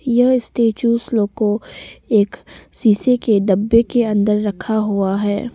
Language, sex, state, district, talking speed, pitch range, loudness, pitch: Hindi, female, Arunachal Pradesh, Papum Pare, 130 wpm, 205-235 Hz, -17 LUFS, 220 Hz